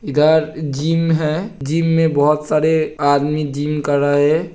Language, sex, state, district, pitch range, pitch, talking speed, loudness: Hindi, male, Uttar Pradesh, Hamirpur, 145-160 Hz, 150 Hz, 160 wpm, -17 LUFS